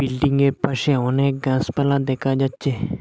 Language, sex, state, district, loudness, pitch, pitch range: Bengali, male, Assam, Hailakandi, -20 LUFS, 135 Hz, 130-140 Hz